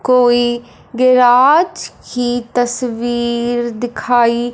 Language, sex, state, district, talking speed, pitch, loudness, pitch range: Hindi, male, Punjab, Fazilka, 65 wpm, 245 Hz, -14 LUFS, 240-250 Hz